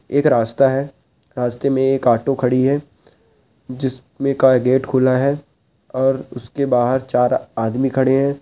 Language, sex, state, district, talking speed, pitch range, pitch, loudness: Hindi, male, Uttarakhand, Uttarkashi, 150 wpm, 125-135 Hz, 130 Hz, -18 LUFS